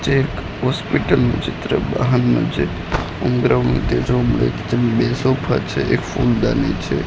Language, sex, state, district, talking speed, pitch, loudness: Gujarati, male, Gujarat, Gandhinagar, 100 wpm, 105 Hz, -18 LUFS